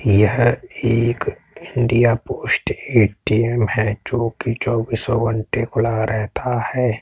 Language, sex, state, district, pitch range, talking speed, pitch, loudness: Hindi, male, Uttar Pradesh, Etah, 110-120 Hz, 105 wpm, 115 Hz, -19 LUFS